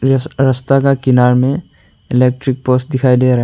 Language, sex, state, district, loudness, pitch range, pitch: Hindi, male, Arunachal Pradesh, Longding, -13 LUFS, 125-135 Hz, 130 Hz